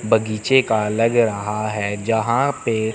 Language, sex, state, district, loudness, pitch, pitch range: Hindi, male, Chandigarh, Chandigarh, -19 LUFS, 110 Hz, 105-115 Hz